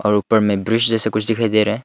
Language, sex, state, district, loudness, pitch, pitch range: Hindi, male, Arunachal Pradesh, Longding, -16 LUFS, 110 Hz, 105-115 Hz